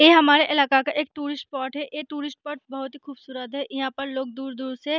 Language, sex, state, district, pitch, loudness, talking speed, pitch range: Hindi, female, Bihar, Araria, 280 Hz, -23 LUFS, 250 wpm, 265-295 Hz